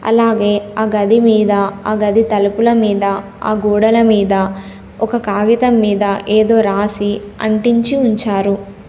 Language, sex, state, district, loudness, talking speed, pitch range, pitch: Telugu, female, Telangana, Komaram Bheem, -14 LUFS, 120 wpm, 200-225 Hz, 210 Hz